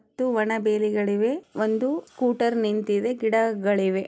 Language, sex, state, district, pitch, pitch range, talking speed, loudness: Kannada, female, Karnataka, Chamarajanagar, 220 Hz, 210-235 Hz, 105 wpm, -24 LUFS